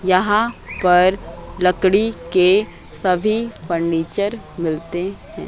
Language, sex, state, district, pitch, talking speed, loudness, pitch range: Hindi, female, Madhya Pradesh, Katni, 185 Hz, 85 wpm, -18 LUFS, 175-205 Hz